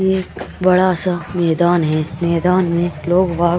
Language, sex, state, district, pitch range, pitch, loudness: Hindi, female, Jharkhand, Sahebganj, 170-185 Hz, 175 Hz, -16 LUFS